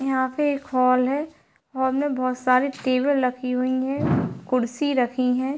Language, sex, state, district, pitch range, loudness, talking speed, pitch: Hindi, female, Bihar, Sitamarhi, 255-275 Hz, -23 LUFS, 170 wpm, 260 Hz